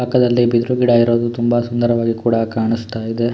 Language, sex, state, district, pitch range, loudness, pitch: Kannada, male, Karnataka, Shimoga, 115-120 Hz, -16 LUFS, 120 Hz